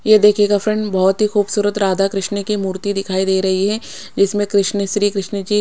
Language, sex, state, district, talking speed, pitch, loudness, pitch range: Hindi, female, Odisha, Khordha, 205 wpm, 200 Hz, -17 LUFS, 195-210 Hz